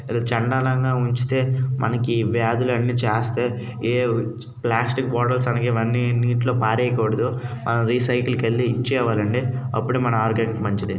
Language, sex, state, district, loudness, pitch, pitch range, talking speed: Telugu, male, Andhra Pradesh, Srikakulam, -21 LUFS, 120 Hz, 115-125 Hz, 120 wpm